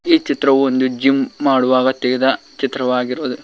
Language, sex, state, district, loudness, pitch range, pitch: Kannada, male, Karnataka, Koppal, -16 LUFS, 130-135 Hz, 130 Hz